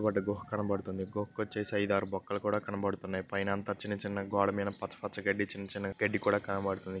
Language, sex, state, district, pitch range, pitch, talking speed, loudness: Telugu, male, Andhra Pradesh, Krishna, 100-105 Hz, 100 Hz, 170 wpm, -34 LUFS